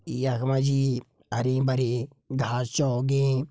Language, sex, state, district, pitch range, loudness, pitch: Garhwali, male, Uttarakhand, Tehri Garhwal, 125-135 Hz, -26 LUFS, 130 Hz